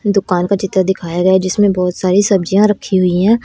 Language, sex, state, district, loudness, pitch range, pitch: Hindi, female, Haryana, Rohtak, -14 LUFS, 185-200 Hz, 190 Hz